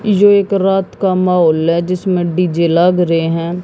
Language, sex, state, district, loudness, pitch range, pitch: Hindi, female, Haryana, Jhajjar, -13 LUFS, 170-190 Hz, 180 Hz